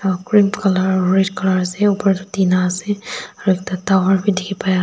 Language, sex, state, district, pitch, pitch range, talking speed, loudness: Nagamese, female, Nagaland, Dimapur, 190 Hz, 185-200 Hz, 175 wpm, -17 LUFS